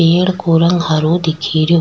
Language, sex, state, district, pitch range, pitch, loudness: Rajasthani, female, Rajasthan, Churu, 160-175 Hz, 165 Hz, -14 LUFS